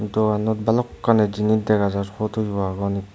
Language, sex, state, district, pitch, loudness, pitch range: Chakma, male, Tripura, Dhalai, 105 Hz, -21 LUFS, 100-110 Hz